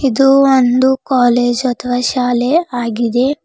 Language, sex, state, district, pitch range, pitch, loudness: Kannada, female, Karnataka, Bidar, 245-265 Hz, 250 Hz, -13 LUFS